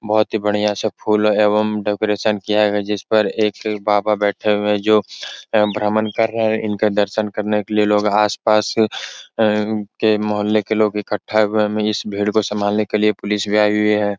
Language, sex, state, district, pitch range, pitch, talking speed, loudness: Hindi, male, Bihar, Araria, 105-110 Hz, 105 Hz, 195 wpm, -18 LUFS